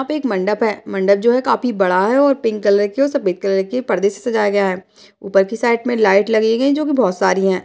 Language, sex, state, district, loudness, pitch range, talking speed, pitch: Hindi, female, Uttarakhand, Uttarkashi, -16 LUFS, 195-245 Hz, 290 wpm, 210 Hz